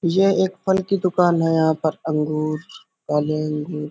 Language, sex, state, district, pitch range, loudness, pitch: Hindi, male, Uttar Pradesh, Hamirpur, 155-185 Hz, -21 LUFS, 160 Hz